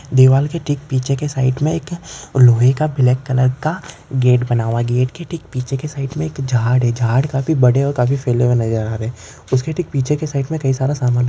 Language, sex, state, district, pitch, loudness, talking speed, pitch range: Hindi, male, Maharashtra, Chandrapur, 130 Hz, -17 LUFS, 240 wpm, 125-145 Hz